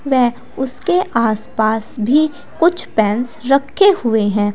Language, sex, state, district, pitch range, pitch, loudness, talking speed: Hindi, female, Uttar Pradesh, Saharanpur, 220-285 Hz, 245 Hz, -16 LUFS, 105 wpm